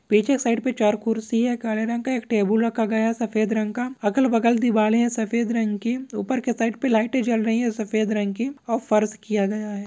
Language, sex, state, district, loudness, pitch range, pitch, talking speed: Hindi, female, Bihar, Samastipur, -22 LUFS, 215-235 Hz, 225 Hz, 245 wpm